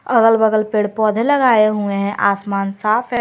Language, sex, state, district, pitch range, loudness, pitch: Hindi, female, Jharkhand, Garhwa, 205-225 Hz, -16 LUFS, 215 Hz